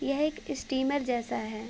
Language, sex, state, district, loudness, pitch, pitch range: Hindi, female, Uttar Pradesh, Varanasi, -31 LUFS, 265 Hz, 230-280 Hz